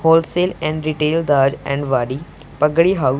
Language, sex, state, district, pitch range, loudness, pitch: Hindi, male, Punjab, Pathankot, 140-165 Hz, -17 LUFS, 155 Hz